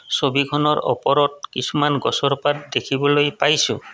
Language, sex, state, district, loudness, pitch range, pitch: Assamese, male, Assam, Kamrup Metropolitan, -19 LUFS, 140-145 Hz, 145 Hz